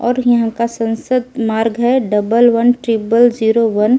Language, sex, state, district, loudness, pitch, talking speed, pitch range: Hindi, female, Delhi, New Delhi, -14 LUFS, 235 Hz, 180 wpm, 225-240 Hz